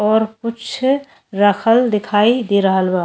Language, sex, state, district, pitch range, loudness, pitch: Bhojpuri, female, Uttar Pradesh, Ghazipur, 205-235 Hz, -16 LUFS, 220 Hz